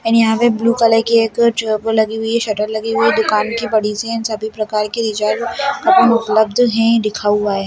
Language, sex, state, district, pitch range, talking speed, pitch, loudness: Kumaoni, female, Uttarakhand, Uttarkashi, 215-230 Hz, 225 wpm, 225 Hz, -15 LUFS